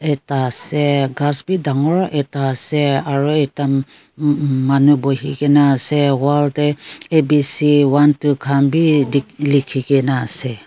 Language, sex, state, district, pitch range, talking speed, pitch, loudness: Nagamese, female, Nagaland, Kohima, 140-150 Hz, 135 wpm, 145 Hz, -16 LUFS